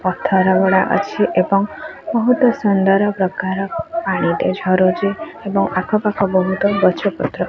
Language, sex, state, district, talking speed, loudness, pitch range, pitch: Odia, female, Odisha, Khordha, 105 wpm, -17 LUFS, 190-215 Hz, 195 Hz